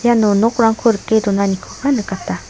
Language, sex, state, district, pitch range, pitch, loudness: Garo, female, Meghalaya, South Garo Hills, 200-230 Hz, 220 Hz, -16 LUFS